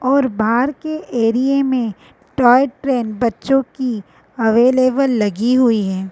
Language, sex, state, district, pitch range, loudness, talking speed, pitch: Hindi, female, Uttar Pradesh, Gorakhpur, 225-270 Hz, -16 LUFS, 130 wpm, 250 Hz